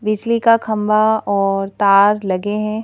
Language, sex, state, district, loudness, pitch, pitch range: Hindi, female, Madhya Pradesh, Bhopal, -15 LUFS, 210 Hz, 200-215 Hz